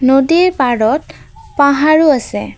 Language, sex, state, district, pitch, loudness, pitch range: Assamese, female, Assam, Kamrup Metropolitan, 285 Hz, -12 LUFS, 250-315 Hz